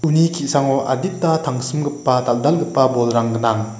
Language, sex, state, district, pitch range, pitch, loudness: Garo, male, Meghalaya, West Garo Hills, 120-160 Hz, 135 Hz, -18 LUFS